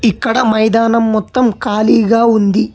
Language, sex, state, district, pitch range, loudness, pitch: Telugu, male, Telangana, Hyderabad, 215-230 Hz, -12 LUFS, 225 Hz